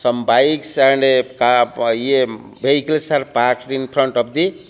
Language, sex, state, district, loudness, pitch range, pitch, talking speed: English, male, Odisha, Malkangiri, -16 LUFS, 120-140 Hz, 130 Hz, 165 wpm